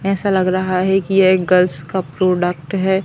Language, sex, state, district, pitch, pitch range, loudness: Hindi, female, Madhya Pradesh, Katni, 185 Hz, 180-190 Hz, -16 LUFS